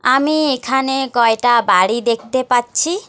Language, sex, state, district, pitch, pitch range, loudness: Bengali, female, West Bengal, Alipurduar, 255 Hz, 235-270 Hz, -15 LUFS